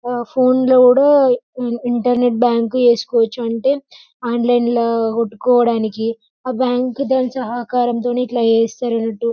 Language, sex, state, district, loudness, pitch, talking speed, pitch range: Telugu, female, Telangana, Karimnagar, -16 LUFS, 245 Hz, 95 wpm, 230-255 Hz